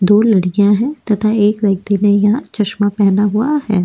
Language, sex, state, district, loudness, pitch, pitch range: Hindi, female, Goa, North and South Goa, -14 LUFS, 205 Hz, 200-215 Hz